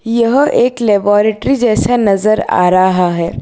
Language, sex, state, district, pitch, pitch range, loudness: Hindi, female, Gujarat, Valsad, 215 Hz, 185-235 Hz, -12 LUFS